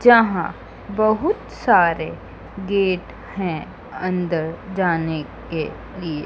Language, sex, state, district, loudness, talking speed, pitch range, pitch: Hindi, female, Madhya Pradesh, Dhar, -21 LUFS, 85 wpm, 165-200 Hz, 185 Hz